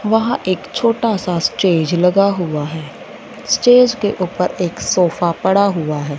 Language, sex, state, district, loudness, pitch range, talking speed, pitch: Hindi, female, Punjab, Fazilka, -16 LUFS, 170-205 Hz, 155 wpm, 180 Hz